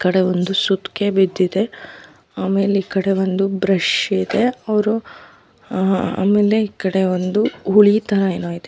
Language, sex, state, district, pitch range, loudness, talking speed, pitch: Kannada, female, Karnataka, Dharwad, 190-205 Hz, -18 LUFS, 125 wpm, 195 Hz